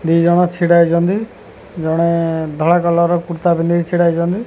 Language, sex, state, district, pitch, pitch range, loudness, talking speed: Odia, male, Odisha, Khordha, 170 Hz, 170-175 Hz, -15 LUFS, 150 wpm